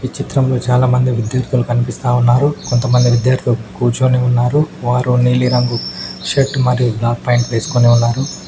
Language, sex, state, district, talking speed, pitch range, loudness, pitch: Telugu, male, Telangana, Mahabubabad, 135 wpm, 120-130 Hz, -15 LUFS, 125 Hz